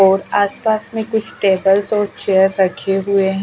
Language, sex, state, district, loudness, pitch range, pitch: Hindi, female, Himachal Pradesh, Shimla, -16 LUFS, 195-210 Hz, 195 Hz